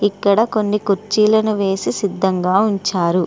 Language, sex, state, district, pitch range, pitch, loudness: Telugu, female, Andhra Pradesh, Srikakulam, 190-215 Hz, 200 Hz, -17 LUFS